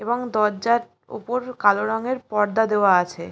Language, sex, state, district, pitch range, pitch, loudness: Bengali, female, West Bengal, Jalpaiguri, 205-240 Hz, 220 Hz, -21 LUFS